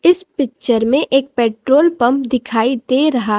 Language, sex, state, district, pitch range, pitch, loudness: Hindi, female, Chhattisgarh, Raipur, 235-280 Hz, 260 Hz, -15 LUFS